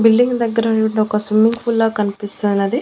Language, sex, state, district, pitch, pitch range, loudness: Telugu, female, Andhra Pradesh, Annamaya, 220 Hz, 210-230 Hz, -17 LUFS